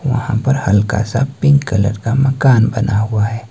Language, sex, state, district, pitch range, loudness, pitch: Hindi, male, Himachal Pradesh, Shimla, 105-135 Hz, -15 LUFS, 115 Hz